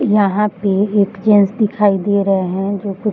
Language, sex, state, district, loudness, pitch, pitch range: Hindi, female, Bihar, Bhagalpur, -15 LUFS, 200 Hz, 195-210 Hz